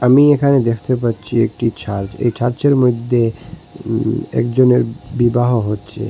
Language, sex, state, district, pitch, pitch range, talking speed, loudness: Bengali, male, Assam, Hailakandi, 120 Hz, 115-125 Hz, 130 wpm, -16 LUFS